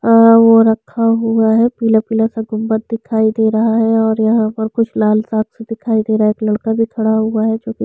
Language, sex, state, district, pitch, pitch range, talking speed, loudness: Hindi, female, Chhattisgarh, Sukma, 225 Hz, 220-225 Hz, 230 wpm, -14 LUFS